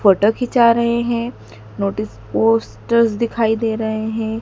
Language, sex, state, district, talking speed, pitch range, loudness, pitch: Hindi, female, Madhya Pradesh, Dhar, 135 wpm, 195-235 Hz, -18 LUFS, 220 Hz